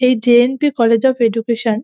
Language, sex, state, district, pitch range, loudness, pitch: Bengali, female, West Bengal, North 24 Parganas, 230-255 Hz, -14 LUFS, 235 Hz